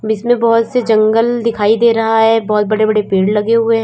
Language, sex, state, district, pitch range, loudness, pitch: Hindi, female, Uttar Pradesh, Lalitpur, 215-230 Hz, -13 LUFS, 225 Hz